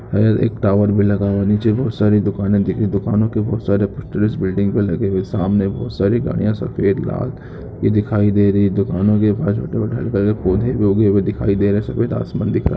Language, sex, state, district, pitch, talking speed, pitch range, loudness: Hindi, male, Goa, North and South Goa, 105 Hz, 240 wpm, 100-110 Hz, -17 LUFS